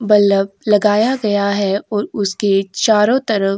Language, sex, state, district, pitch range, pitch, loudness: Hindi, female, Uttar Pradesh, Jyotiba Phule Nagar, 200-210 Hz, 205 Hz, -15 LUFS